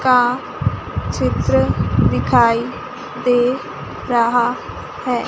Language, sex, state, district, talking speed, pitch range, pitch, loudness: Hindi, female, Chandigarh, Chandigarh, 70 wpm, 245-250 Hz, 245 Hz, -18 LUFS